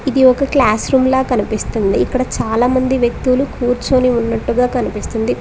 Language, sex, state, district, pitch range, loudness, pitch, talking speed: Telugu, female, Telangana, Mahabubabad, 235-260 Hz, -15 LUFS, 250 Hz, 135 wpm